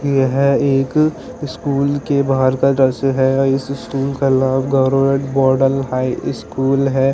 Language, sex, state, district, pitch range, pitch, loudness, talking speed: Hindi, male, Chandigarh, Chandigarh, 135-140 Hz, 135 Hz, -16 LUFS, 135 wpm